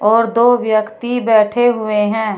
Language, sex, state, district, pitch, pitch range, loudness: Hindi, female, Uttar Pradesh, Shamli, 220 Hz, 215-240 Hz, -14 LUFS